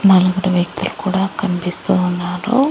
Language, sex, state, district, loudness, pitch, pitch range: Telugu, male, Andhra Pradesh, Annamaya, -18 LUFS, 185 Hz, 180-195 Hz